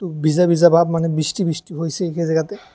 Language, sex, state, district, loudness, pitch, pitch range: Bengali, male, Tripura, West Tripura, -18 LUFS, 165 Hz, 160-175 Hz